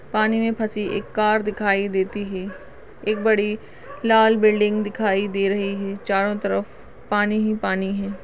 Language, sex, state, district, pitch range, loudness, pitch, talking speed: Hindi, female, Maharashtra, Chandrapur, 195-215 Hz, -21 LUFS, 205 Hz, 160 wpm